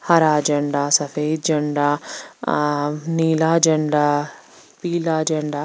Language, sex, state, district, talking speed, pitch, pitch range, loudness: Hindi, female, Chandigarh, Chandigarh, 95 wpm, 150 Hz, 145-160 Hz, -19 LUFS